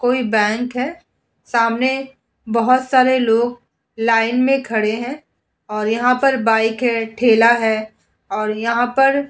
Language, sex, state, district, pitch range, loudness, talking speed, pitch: Hindi, female, Uttar Pradesh, Hamirpur, 225-255 Hz, -17 LUFS, 140 wpm, 235 Hz